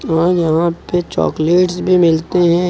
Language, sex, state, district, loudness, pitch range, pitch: Hindi, male, Uttar Pradesh, Lucknow, -14 LUFS, 165-180 Hz, 175 Hz